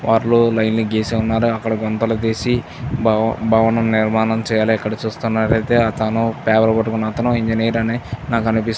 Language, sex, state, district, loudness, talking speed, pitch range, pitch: Telugu, male, Andhra Pradesh, Chittoor, -17 LUFS, 130 wpm, 110-115 Hz, 110 Hz